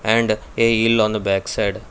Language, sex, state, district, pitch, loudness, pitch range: English, male, Karnataka, Bangalore, 110 Hz, -18 LUFS, 105-115 Hz